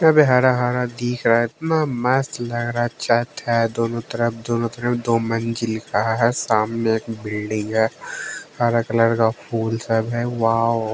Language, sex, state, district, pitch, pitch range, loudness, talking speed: Hindi, male, Haryana, Jhajjar, 115 Hz, 115-120 Hz, -21 LUFS, 175 wpm